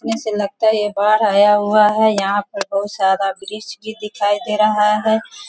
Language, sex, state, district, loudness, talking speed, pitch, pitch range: Hindi, female, Bihar, Sitamarhi, -16 LUFS, 195 wpm, 210 Hz, 205-215 Hz